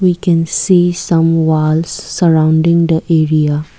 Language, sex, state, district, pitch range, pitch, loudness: English, female, Assam, Kamrup Metropolitan, 155-170 Hz, 165 Hz, -12 LUFS